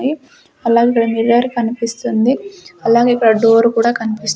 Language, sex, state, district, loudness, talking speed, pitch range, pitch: Telugu, female, Andhra Pradesh, Sri Satya Sai, -14 LUFS, 95 wpm, 225-245 Hz, 235 Hz